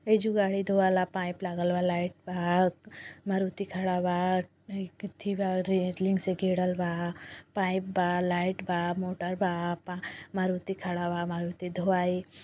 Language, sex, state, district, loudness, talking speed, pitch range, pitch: Bhojpuri, female, Uttar Pradesh, Gorakhpur, -30 LUFS, 65 wpm, 175-190 Hz, 185 Hz